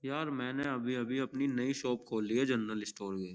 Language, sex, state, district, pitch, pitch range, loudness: Hindi, male, Uttar Pradesh, Jyotiba Phule Nagar, 125 Hz, 110-135 Hz, -35 LUFS